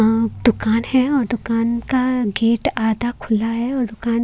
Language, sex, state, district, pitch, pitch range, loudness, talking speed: Hindi, female, Haryana, Jhajjar, 235 Hz, 225-245 Hz, -19 LUFS, 155 wpm